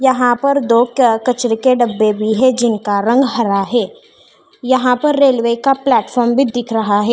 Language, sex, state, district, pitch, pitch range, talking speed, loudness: Hindi, female, Maharashtra, Mumbai Suburban, 245 Hz, 230-260 Hz, 185 wpm, -14 LUFS